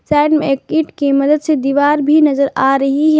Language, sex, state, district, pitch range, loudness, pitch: Hindi, female, Jharkhand, Garhwa, 275-310 Hz, -13 LUFS, 295 Hz